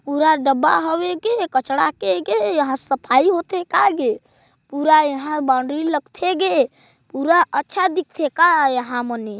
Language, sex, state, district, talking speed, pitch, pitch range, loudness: Hindi, female, Chhattisgarh, Balrampur, 155 wpm, 300 Hz, 270-345 Hz, -18 LUFS